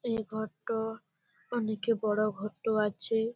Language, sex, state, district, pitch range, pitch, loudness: Bengali, female, West Bengal, Jalpaiguri, 210-225 Hz, 220 Hz, -32 LUFS